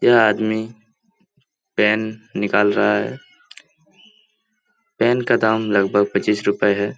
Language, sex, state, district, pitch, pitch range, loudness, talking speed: Hindi, male, Bihar, Lakhisarai, 110 Hz, 105-120 Hz, -18 LUFS, 110 wpm